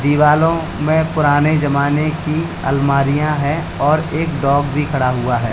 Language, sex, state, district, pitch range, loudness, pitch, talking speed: Hindi, male, Uttar Pradesh, Lalitpur, 140-155 Hz, -16 LUFS, 150 Hz, 150 wpm